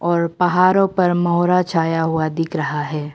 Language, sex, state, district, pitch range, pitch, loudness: Hindi, female, Arunachal Pradesh, Papum Pare, 160-180 Hz, 170 Hz, -18 LUFS